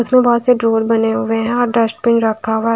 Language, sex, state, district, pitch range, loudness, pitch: Hindi, female, Haryana, Charkhi Dadri, 225-240 Hz, -15 LUFS, 230 Hz